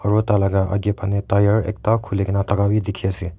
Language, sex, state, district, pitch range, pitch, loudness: Nagamese, male, Nagaland, Kohima, 100-105 Hz, 100 Hz, -20 LUFS